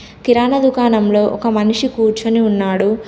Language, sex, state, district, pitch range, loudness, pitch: Telugu, female, Telangana, Komaram Bheem, 210-240 Hz, -14 LUFS, 220 Hz